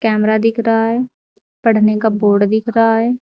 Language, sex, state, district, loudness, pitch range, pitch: Hindi, female, Uttar Pradesh, Saharanpur, -14 LUFS, 215-230 Hz, 225 Hz